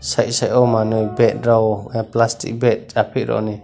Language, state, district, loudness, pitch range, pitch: Kokborok, Tripura, West Tripura, -18 LUFS, 110-115 Hz, 115 Hz